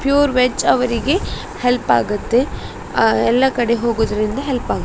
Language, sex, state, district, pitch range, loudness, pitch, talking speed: Kannada, female, Karnataka, Dakshina Kannada, 235-265 Hz, -17 LUFS, 245 Hz, 150 wpm